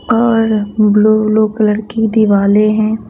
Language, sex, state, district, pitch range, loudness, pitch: Hindi, female, Haryana, Jhajjar, 210-220 Hz, -12 LUFS, 215 Hz